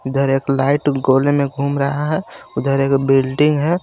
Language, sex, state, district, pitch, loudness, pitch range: Hindi, male, Jharkhand, Garhwa, 140 Hz, -17 LUFS, 135-145 Hz